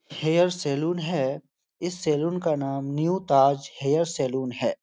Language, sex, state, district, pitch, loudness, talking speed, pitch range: Hindi, male, Uttar Pradesh, Etah, 150 Hz, -25 LUFS, 150 wpm, 140-175 Hz